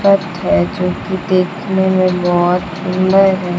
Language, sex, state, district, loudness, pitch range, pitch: Hindi, female, Bihar, Kaimur, -15 LUFS, 180-190 Hz, 185 Hz